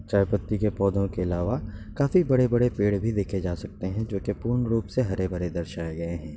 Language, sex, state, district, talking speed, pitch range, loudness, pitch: Hindi, male, Bihar, Kishanganj, 205 wpm, 90-115 Hz, -26 LUFS, 100 Hz